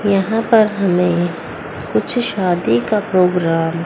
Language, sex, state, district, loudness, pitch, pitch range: Hindi, female, Chandigarh, Chandigarh, -16 LUFS, 180 Hz, 175-210 Hz